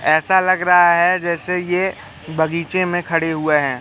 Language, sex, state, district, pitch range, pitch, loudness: Hindi, male, Madhya Pradesh, Katni, 160-180 Hz, 175 Hz, -17 LUFS